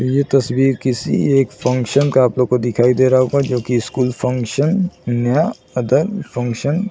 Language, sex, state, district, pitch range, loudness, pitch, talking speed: Hindi, male, Chhattisgarh, Bilaspur, 125-140 Hz, -17 LUFS, 130 Hz, 165 wpm